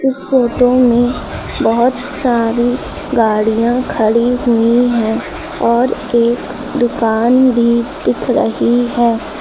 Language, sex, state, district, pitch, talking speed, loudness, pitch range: Hindi, female, Uttar Pradesh, Lucknow, 240 Hz, 100 wpm, -14 LUFS, 235-255 Hz